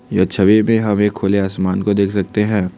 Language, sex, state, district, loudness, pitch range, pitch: Hindi, male, Assam, Kamrup Metropolitan, -16 LUFS, 95-105 Hz, 100 Hz